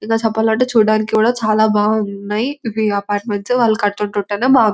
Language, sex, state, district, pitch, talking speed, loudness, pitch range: Telugu, female, Telangana, Nalgonda, 215 Hz, 140 wpm, -16 LUFS, 210-225 Hz